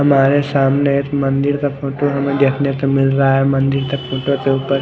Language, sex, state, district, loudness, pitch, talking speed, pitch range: Hindi, male, Odisha, Khordha, -16 LUFS, 140 Hz, 200 wpm, 135-140 Hz